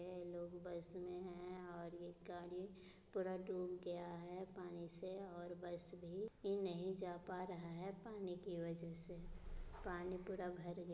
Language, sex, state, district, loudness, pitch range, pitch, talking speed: Hindi, female, Bihar, Muzaffarpur, -49 LUFS, 175-185 Hz, 180 Hz, 165 wpm